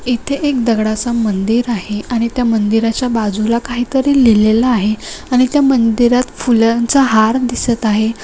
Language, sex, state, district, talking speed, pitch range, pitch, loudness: Marathi, female, Maharashtra, Nagpur, 140 wpm, 220-250 Hz, 235 Hz, -14 LUFS